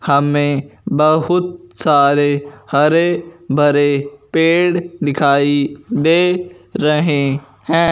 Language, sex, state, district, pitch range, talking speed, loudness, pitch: Hindi, male, Punjab, Fazilka, 145-170 Hz, 75 wpm, -15 LUFS, 145 Hz